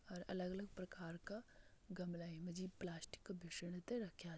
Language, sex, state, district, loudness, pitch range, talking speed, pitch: Garhwali, female, Uttarakhand, Tehri Garhwal, -50 LUFS, 170-190 Hz, 180 wpm, 180 Hz